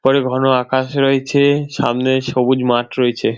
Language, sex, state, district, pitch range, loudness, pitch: Bengali, male, West Bengal, North 24 Parganas, 125-135 Hz, -16 LUFS, 130 Hz